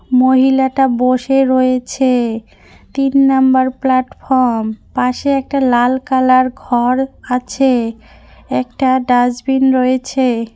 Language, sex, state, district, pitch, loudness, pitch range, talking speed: Bengali, female, West Bengal, Cooch Behar, 255 Hz, -14 LUFS, 250-265 Hz, 85 wpm